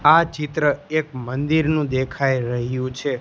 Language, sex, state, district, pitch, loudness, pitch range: Gujarati, male, Gujarat, Gandhinagar, 140 Hz, -21 LUFS, 130-155 Hz